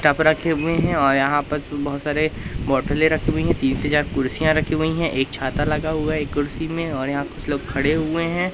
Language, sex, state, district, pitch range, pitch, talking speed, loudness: Hindi, male, Madhya Pradesh, Umaria, 140-160 Hz, 150 Hz, 230 wpm, -21 LUFS